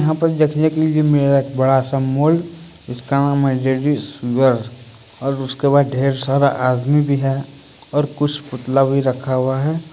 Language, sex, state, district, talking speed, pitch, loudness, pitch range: Hindi, male, Bihar, Purnia, 145 wpm, 135 Hz, -17 LUFS, 130-145 Hz